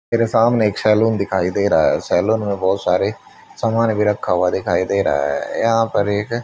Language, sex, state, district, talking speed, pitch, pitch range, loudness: Hindi, male, Haryana, Charkhi Dadri, 225 wpm, 105 Hz, 100-115 Hz, -18 LUFS